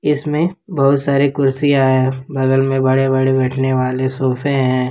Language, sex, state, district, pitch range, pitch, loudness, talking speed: Hindi, male, Jharkhand, Ranchi, 130-140 Hz, 135 Hz, -16 LUFS, 160 wpm